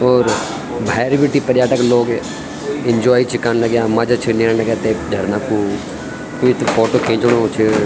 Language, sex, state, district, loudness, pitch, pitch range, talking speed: Garhwali, male, Uttarakhand, Tehri Garhwal, -16 LUFS, 115 Hz, 110-125 Hz, 160 wpm